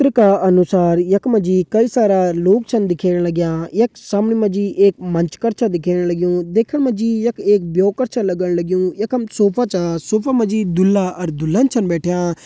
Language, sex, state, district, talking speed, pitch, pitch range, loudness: Hindi, male, Uttarakhand, Uttarkashi, 200 wpm, 195 Hz, 180-225 Hz, -16 LUFS